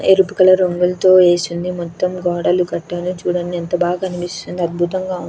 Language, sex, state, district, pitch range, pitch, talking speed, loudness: Telugu, female, Andhra Pradesh, Krishna, 175-185 Hz, 180 Hz, 145 wpm, -16 LUFS